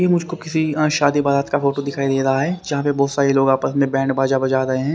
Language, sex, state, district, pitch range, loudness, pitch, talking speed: Hindi, male, Haryana, Rohtak, 135-150 Hz, -18 LUFS, 140 Hz, 265 wpm